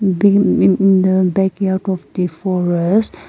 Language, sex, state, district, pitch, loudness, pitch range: English, female, Nagaland, Kohima, 190 Hz, -15 LUFS, 180-195 Hz